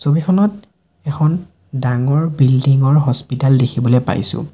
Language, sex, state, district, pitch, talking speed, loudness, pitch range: Assamese, male, Assam, Sonitpur, 140 Hz, 105 wpm, -15 LUFS, 130-160 Hz